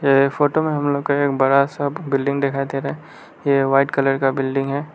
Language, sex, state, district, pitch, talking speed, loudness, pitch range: Hindi, male, Arunachal Pradesh, Lower Dibang Valley, 140 Hz, 230 wpm, -19 LUFS, 135-145 Hz